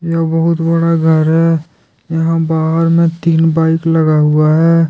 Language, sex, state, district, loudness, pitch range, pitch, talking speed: Hindi, male, Jharkhand, Deoghar, -12 LUFS, 160-165 Hz, 165 Hz, 160 wpm